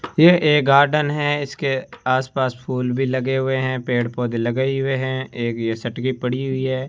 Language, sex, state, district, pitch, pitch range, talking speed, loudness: Hindi, male, Rajasthan, Bikaner, 130 Hz, 125-135 Hz, 200 wpm, -20 LUFS